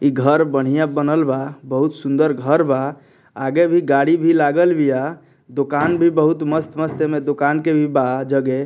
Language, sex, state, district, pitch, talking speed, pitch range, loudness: Bhojpuri, male, Bihar, Muzaffarpur, 145 Hz, 165 wpm, 135-155 Hz, -17 LUFS